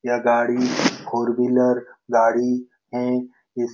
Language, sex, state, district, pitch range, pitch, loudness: Hindi, male, Bihar, Saran, 120-125 Hz, 125 Hz, -21 LUFS